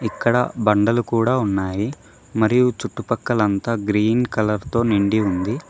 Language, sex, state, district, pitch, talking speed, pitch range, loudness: Telugu, male, Telangana, Mahabubabad, 110 Hz, 115 wpm, 105-120 Hz, -20 LUFS